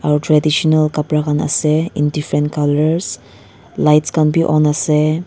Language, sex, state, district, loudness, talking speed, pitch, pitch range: Nagamese, female, Nagaland, Dimapur, -15 LUFS, 150 wpm, 150 Hz, 150-155 Hz